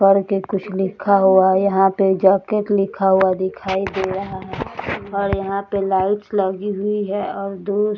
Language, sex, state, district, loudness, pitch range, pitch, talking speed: Hindi, female, Maharashtra, Nagpur, -19 LUFS, 190-200 Hz, 195 Hz, 180 wpm